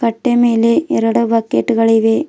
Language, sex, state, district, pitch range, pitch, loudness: Kannada, female, Karnataka, Bidar, 225-235 Hz, 230 Hz, -14 LUFS